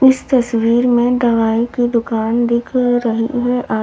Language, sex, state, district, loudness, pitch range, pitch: Hindi, female, Uttar Pradesh, Lalitpur, -15 LUFS, 230-245 Hz, 240 Hz